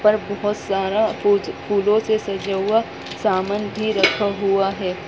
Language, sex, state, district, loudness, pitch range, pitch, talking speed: Hindi, male, Bihar, Gaya, -20 LUFS, 195-215 Hz, 205 Hz, 155 wpm